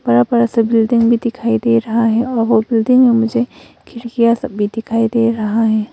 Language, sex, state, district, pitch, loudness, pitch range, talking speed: Hindi, female, Arunachal Pradesh, Longding, 230 Hz, -14 LUFS, 225-235 Hz, 210 wpm